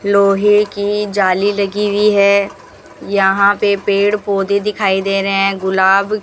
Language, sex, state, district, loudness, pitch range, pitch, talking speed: Hindi, female, Rajasthan, Bikaner, -14 LUFS, 195-205 Hz, 200 Hz, 155 wpm